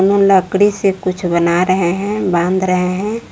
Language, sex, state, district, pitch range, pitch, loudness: Hindi, female, Jharkhand, Palamu, 180-200 Hz, 190 Hz, -15 LUFS